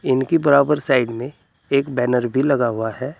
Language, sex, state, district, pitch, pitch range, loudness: Hindi, male, Uttar Pradesh, Saharanpur, 130 Hz, 125-140 Hz, -18 LUFS